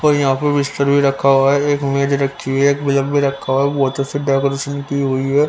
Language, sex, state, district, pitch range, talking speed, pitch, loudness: Hindi, male, Haryana, Rohtak, 135-140 Hz, 260 wpm, 140 Hz, -16 LUFS